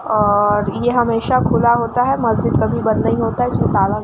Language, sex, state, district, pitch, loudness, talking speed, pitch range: Hindi, female, Uttar Pradesh, Etah, 230 Hz, -16 LUFS, 205 wpm, 205-240 Hz